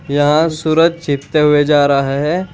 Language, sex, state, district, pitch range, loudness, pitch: Hindi, male, Uttar Pradesh, Saharanpur, 145-160 Hz, -13 LUFS, 150 Hz